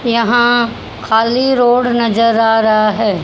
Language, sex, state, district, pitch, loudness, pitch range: Hindi, female, Haryana, Jhajjar, 230 Hz, -12 LUFS, 225-240 Hz